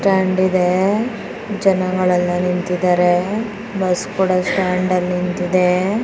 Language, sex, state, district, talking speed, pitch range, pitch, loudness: Kannada, female, Karnataka, Raichur, 100 wpm, 180-195 Hz, 185 Hz, -17 LUFS